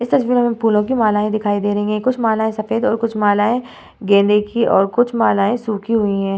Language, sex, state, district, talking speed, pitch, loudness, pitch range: Hindi, female, Bihar, Vaishali, 235 wpm, 215 Hz, -16 LUFS, 205-235 Hz